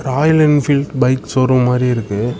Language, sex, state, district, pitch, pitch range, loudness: Tamil, male, Tamil Nadu, Namakkal, 130 Hz, 125-145 Hz, -14 LUFS